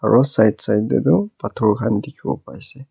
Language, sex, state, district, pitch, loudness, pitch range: Nagamese, male, Nagaland, Kohima, 110 Hz, -19 LUFS, 105-135 Hz